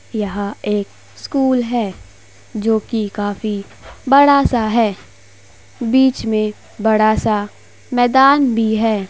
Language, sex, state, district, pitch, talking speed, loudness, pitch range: Hindi, female, Uttar Pradesh, Gorakhpur, 215 Hz, 105 wpm, -16 LUFS, 200-240 Hz